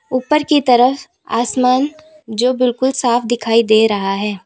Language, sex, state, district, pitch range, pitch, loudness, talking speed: Hindi, female, Uttar Pradesh, Lalitpur, 230-265 Hz, 250 Hz, -15 LUFS, 150 wpm